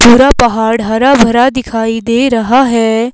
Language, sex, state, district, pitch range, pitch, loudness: Hindi, female, Himachal Pradesh, Shimla, 225-255 Hz, 235 Hz, -9 LUFS